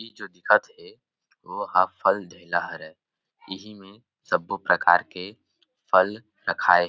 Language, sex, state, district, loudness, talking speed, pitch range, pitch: Chhattisgarhi, male, Chhattisgarh, Rajnandgaon, -23 LUFS, 140 wpm, 95-115 Hz, 100 Hz